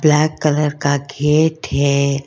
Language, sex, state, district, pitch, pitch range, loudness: Hindi, female, Karnataka, Bangalore, 150 Hz, 140-150 Hz, -17 LUFS